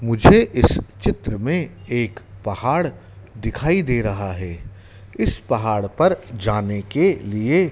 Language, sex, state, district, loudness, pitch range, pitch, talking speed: Hindi, male, Madhya Pradesh, Dhar, -20 LUFS, 100-125 Hz, 110 Hz, 125 wpm